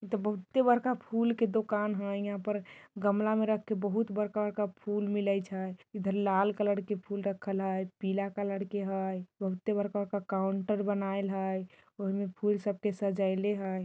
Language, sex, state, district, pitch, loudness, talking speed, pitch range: Bajjika, female, Bihar, Vaishali, 200 Hz, -32 LUFS, 180 wpm, 195-210 Hz